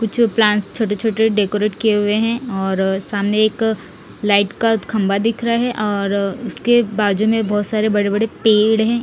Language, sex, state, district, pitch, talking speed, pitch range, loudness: Hindi, female, Punjab, Fazilka, 215 Hz, 175 wpm, 205-225 Hz, -17 LUFS